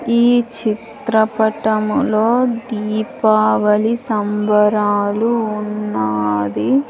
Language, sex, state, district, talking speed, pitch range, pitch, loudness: Telugu, female, Andhra Pradesh, Sri Satya Sai, 45 wpm, 210-230 Hz, 215 Hz, -17 LUFS